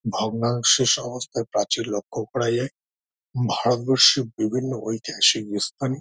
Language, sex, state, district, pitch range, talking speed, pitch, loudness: Bengali, male, West Bengal, Dakshin Dinajpur, 110-130 Hz, 90 wpm, 120 Hz, -22 LUFS